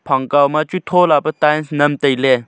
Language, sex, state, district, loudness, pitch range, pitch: Wancho, male, Arunachal Pradesh, Longding, -15 LUFS, 135-155 Hz, 145 Hz